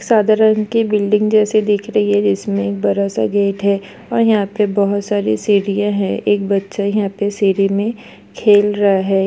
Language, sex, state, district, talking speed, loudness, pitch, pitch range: Hindi, female, Bihar, Bhagalpur, 200 wpm, -16 LUFS, 205 Hz, 200-210 Hz